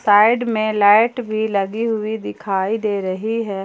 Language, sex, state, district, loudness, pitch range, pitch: Hindi, female, Jharkhand, Palamu, -18 LUFS, 200-225 Hz, 215 Hz